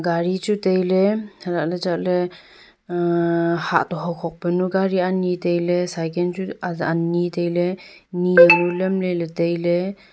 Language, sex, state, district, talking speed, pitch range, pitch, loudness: Wancho, female, Arunachal Pradesh, Longding, 110 wpm, 170-185 Hz, 175 Hz, -20 LUFS